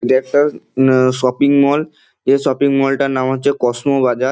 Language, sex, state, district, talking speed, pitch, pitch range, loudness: Bengali, male, West Bengal, Dakshin Dinajpur, 195 wpm, 135 Hz, 130-140 Hz, -15 LUFS